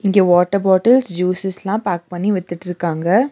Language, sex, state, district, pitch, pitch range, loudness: Tamil, female, Tamil Nadu, Nilgiris, 185 Hz, 175-200 Hz, -17 LUFS